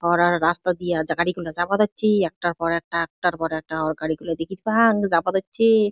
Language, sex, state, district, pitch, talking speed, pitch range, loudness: Bengali, female, West Bengal, Jalpaiguri, 175 Hz, 170 wpm, 165-195 Hz, -22 LUFS